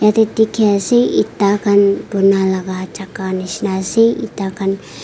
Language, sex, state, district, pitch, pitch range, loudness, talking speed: Nagamese, female, Nagaland, Kohima, 200 Hz, 190-215 Hz, -15 LUFS, 140 wpm